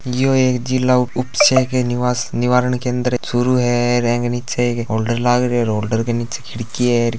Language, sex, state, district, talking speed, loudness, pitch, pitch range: Hindi, male, Rajasthan, Churu, 200 wpm, -17 LUFS, 125 Hz, 120-125 Hz